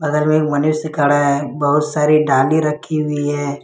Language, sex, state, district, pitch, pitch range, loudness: Hindi, male, Jharkhand, Ranchi, 150 Hz, 145-155 Hz, -16 LUFS